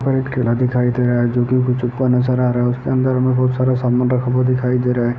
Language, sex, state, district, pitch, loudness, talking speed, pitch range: Hindi, male, Bihar, Purnia, 125 Hz, -17 LUFS, 290 wpm, 125-130 Hz